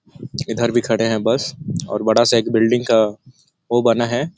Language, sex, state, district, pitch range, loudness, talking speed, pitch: Hindi, male, Chhattisgarh, Sarguja, 115-130 Hz, -18 LUFS, 190 wpm, 120 Hz